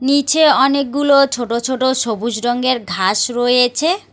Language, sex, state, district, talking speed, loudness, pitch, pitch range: Bengali, female, West Bengal, Alipurduar, 115 wpm, -15 LUFS, 255 Hz, 240-280 Hz